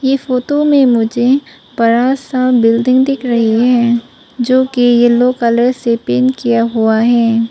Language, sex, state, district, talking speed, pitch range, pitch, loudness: Hindi, female, Arunachal Pradesh, Papum Pare, 150 wpm, 235-255 Hz, 245 Hz, -12 LUFS